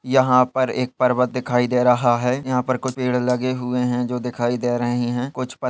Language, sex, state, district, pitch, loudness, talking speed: Hindi, male, Chhattisgarh, Balrampur, 125 Hz, -20 LUFS, 230 wpm